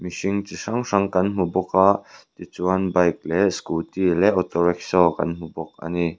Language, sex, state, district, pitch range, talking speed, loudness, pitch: Mizo, male, Mizoram, Aizawl, 85-95 Hz, 205 wpm, -21 LUFS, 90 Hz